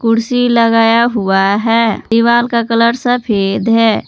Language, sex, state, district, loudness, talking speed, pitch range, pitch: Hindi, female, Jharkhand, Palamu, -12 LUFS, 130 wpm, 225-235 Hz, 230 Hz